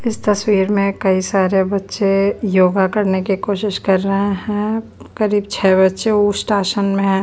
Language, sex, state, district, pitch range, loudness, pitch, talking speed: Hindi, female, Bihar, Patna, 190-205 Hz, -16 LUFS, 200 Hz, 165 wpm